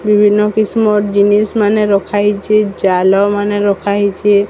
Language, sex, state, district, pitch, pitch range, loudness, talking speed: Odia, female, Odisha, Sambalpur, 205 Hz, 200-210 Hz, -12 LUFS, 105 wpm